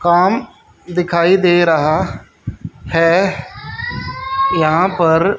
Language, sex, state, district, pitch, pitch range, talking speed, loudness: Hindi, female, Haryana, Jhajjar, 175 Hz, 165-190 Hz, 80 wpm, -15 LUFS